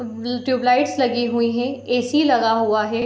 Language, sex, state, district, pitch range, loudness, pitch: Hindi, female, Bihar, Darbhanga, 235-255 Hz, -19 LUFS, 245 Hz